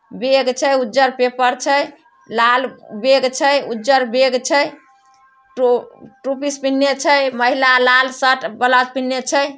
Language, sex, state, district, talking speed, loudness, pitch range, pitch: Maithili, female, Bihar, Samastipur, 140 wpm, -16 LUFS, 250-275 Hz, 265 Hz